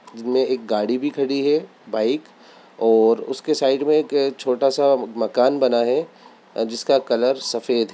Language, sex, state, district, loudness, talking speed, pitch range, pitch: Hindi, male, Bihar, Sitamarhi, -20 LUFS, 160 wpm, 115-140 Hz, 130 Hz